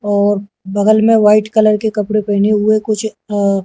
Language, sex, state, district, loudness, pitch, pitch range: Hindi, male, Haryana, Jhajjar, -13 LUFS, 210 Hz, 205-215 Hz